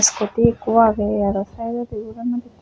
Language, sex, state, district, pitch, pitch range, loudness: Chakma, female, Tripura, West Tripura, 225 Hz, 210-235 Hz, -20 LUFS